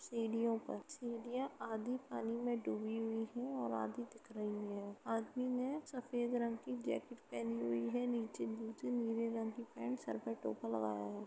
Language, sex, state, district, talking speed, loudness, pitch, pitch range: Hindi, female, Uttar Pradesh, Etah, 180 wpm, -42 LUFS, 225 Hz, 200-245 Hz